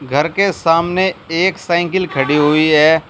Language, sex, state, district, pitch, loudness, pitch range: Hindi, male, Uttar Pradesh, Shamli, 165 Hz, -14 LUFS, 150-180 Hz